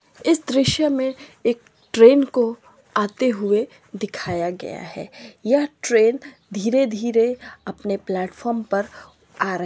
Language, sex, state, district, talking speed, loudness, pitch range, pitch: Hindi, female, Chhattisgarh, Sarguja, 125 wpm, -20 LUFS, 205-265 Hz, 230 Hz